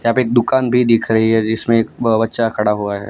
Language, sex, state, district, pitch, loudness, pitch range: Hindi, male, Gujarat, Gandhinagar, 115 Hz, -15 LUFS, 110-120 Hz